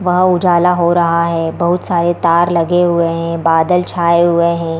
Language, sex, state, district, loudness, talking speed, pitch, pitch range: Hindi, female, Bihar, East Champaran, -13 LUFS, 200 wpm, 170 Hz, 170-175 Hz